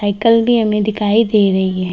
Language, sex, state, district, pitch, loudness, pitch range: Hindi, female, Bihar, Darbhanga, 210 Hz, -14 LUFS, 200-225 Hz